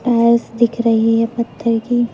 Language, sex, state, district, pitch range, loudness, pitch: Hindi, female, Madhya Pradesh, Umaria, 230-235 Hz, -16 LUFS, 235 Hz